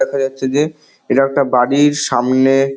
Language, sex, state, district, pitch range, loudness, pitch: Bengali, male, West Bengal, Dakshin Dinajpur, 130-145 Hz, -15 LUFS, 135 Hz